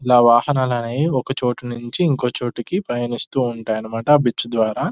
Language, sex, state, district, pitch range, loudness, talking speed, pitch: Telugu, male, Telangana, Nalgonda, 120-130 Hz, -19 LUFS, 145 wpm, 120 Hz